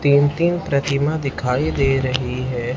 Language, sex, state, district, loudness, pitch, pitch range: Hindi, male, Maharashtra, Mumbai Suburban, -19 LUFS, 140 Hz, 130-145 Hz